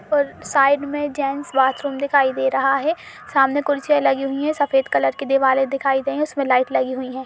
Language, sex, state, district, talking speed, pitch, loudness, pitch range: Hindi, female, Uttar Pradesh, Jalaun, 225 wpm, 275 Hz, -19 LUFS, 270-285 Hz